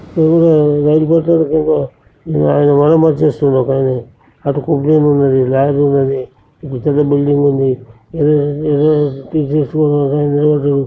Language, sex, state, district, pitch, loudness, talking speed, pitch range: Telugu, male, Andhra Pradesh, Srikakulam, 145 Hz, -13 LUFS, 120 wpm, 135-155 Hz